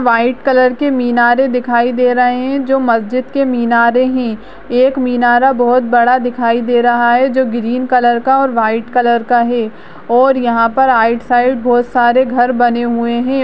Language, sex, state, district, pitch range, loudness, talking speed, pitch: Hindi, female, Bihar, Jahanabad, 235-255 Hz, -12 LUFS, 185 wpm, 245 Hz